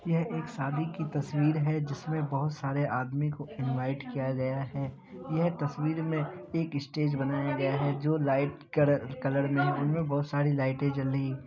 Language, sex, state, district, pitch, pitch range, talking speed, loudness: Hindi, male, Bihar, Kishanganj, 145 Hz, 135-150 Hz, 190 wpm, -31 LUFS